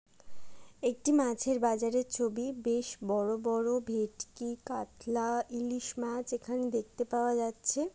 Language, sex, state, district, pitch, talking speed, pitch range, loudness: Bengali, female, West Bengal, Jalpaiguri, 240 Hz, 115 wpm, 230-250 Hz, -33 LUFS